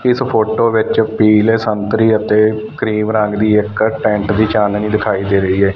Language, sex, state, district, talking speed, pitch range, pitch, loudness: Punjabi, male, Punjab, Fazilka, 175 wpm, 105-110 Hz, 110 Hz, -14 LUFS